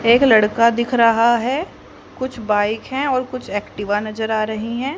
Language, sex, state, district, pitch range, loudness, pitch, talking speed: Hindi, female, Haryana, Charkhi Dadri, 215-255 Hz, -18 LUFS, 230 Hz, 180 wpm